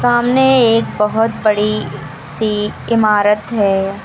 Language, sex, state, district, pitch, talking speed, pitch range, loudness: Hindi, female, Uttar Pradesh, Lucknow, 215 Hz, 105 wpm, 205-230 Hz, -14 LUFS